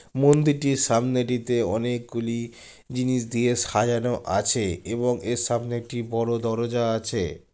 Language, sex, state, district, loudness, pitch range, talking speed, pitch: Bengali, male, West Bengal, Jalpaiguri, -24 LUFS, 115-125 Hz, 120 wpm, 120 Hz